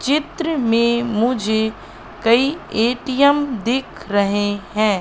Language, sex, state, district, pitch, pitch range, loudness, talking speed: Hindi, female, Madhya Pradesh, Katni, 235 Hz, 215-270 Hz, -18 LUFS, 95 wpm